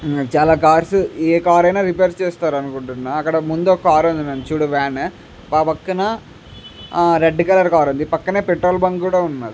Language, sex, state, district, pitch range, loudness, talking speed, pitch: Telugu, male, Andhra Pradesh, Krishna, 150-180 Hz, -16 LUFS, 150 wpm, 165 Hz